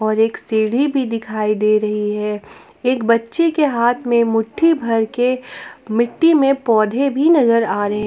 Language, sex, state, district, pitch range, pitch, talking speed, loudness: Hindi, female, Jharkhand, Palamu, 215-265 Hz, 230 Hz, 180 wpm, -17 LUFS